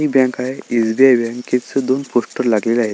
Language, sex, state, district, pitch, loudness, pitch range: Marathi, male, Maharashtra, Sindhudurg, 125 Hz, -17 LUFS, 115-130 Hz